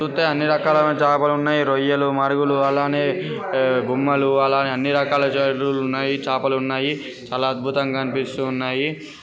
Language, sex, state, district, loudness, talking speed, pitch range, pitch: Telugu, male, Telangana, Karimnagar, -20 LUFS, 130 wpm, 135-145 Hz, 140 Hz